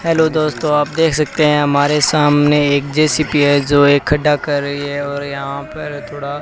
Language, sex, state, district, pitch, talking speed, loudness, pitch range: Hindi, male, Rajasthan, Bikaner, 145 Hz, 205 wpm, -15 LUFS, 145-150 Hz